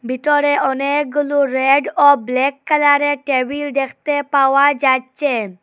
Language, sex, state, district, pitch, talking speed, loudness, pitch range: Bengali, female, Assam, Hailakandi, 280 Hz, 115 wpm, -16 LUFS, 265-290 Hz